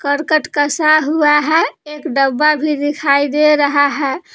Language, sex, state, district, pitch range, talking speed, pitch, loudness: Hindi, female, Jharkhand, Palamu, 285-305 Hz, 150 wpm, 300 Hz, -14 LUFS